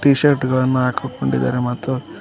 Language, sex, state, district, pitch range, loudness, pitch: Kannada, male, Karnataka, Koppal, 125-135 Hz, -18 LUFS, 130 Hz